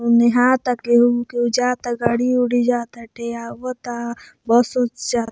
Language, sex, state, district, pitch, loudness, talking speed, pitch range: Bhojpuri, female, Bihar, Muzaffarpur, 240 Hz, -19 LUFS, 145 wpm, 235-245 Hz